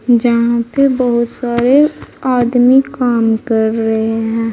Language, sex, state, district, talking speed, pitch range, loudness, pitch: Hindi, female, Uttar Pradesh, Saharanpur, 120 wpm, 225-250 Hz, -13 LUFS, 240 Hz